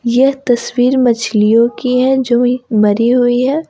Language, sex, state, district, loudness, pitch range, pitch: Hindi, female, Jharkhand, Ranchi, -12 LUFS, 235-255 Hz, 245 Hz